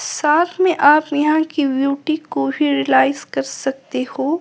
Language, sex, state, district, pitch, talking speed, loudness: Hindi, female, Himachal Pradesh, Shimla, 275 Hz, 165 wpm, -17 LUFS